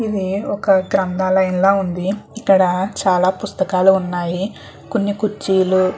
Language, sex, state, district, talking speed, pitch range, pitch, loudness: Telugu, female, Andhra Pradesh, Guntur, 120 wpm, 185-200 Hz, 190 Hz, -17 LUFS